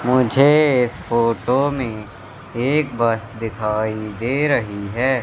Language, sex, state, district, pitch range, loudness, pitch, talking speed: Hindi, male, Madhya Pradesh, Katni, 110-135 Hz, -19 LUFS, 120 Hz, 115 wpm